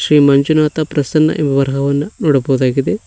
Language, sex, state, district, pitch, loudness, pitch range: Kannada, male, Karnataka, Koppal, 145 Hz, -14 LUFS, 135-155 Hz